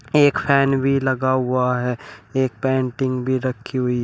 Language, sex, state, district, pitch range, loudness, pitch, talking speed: Hindi, male, Uttar Pradesh, Shamli, 125-135 Hz, -20 LUFS, 130 Hz, 165 wpm